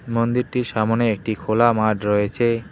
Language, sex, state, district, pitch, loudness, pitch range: Bengali, male, West Bengal, Cooch Behar, 115 Hz, -20 LUFS, 110-120 Hz